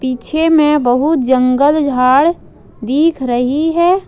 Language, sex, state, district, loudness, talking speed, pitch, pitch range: Hindi, female, Jharkhand, Ranchi, -13 LUFS, 115 wpm, 285 Hz, 255-315 Hz